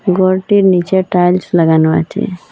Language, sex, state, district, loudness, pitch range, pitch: Bengali, female, Assam, Hailakandi, -12 LUFS, 175-190 Hz, 185 Hz